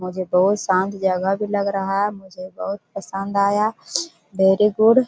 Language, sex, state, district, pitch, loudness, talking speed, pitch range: Hindi, female, Chhattisgarh, Korba, 195 Hz, -20 LUFS, 175 wpm, 185-205 Hz